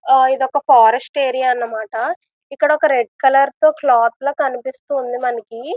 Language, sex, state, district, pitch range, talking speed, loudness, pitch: Telugu, female, Andhra Pradesh, Visakhapatnam, 245-285 Hz, 135 wpm, -16 LUFS, 265 Hz